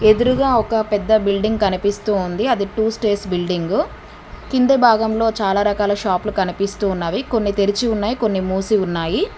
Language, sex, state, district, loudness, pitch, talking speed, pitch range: Telugu, female, Telangana, Mahabubabad, -18 LUFS, 210 Hz, 145 wpm, 195-225 Hz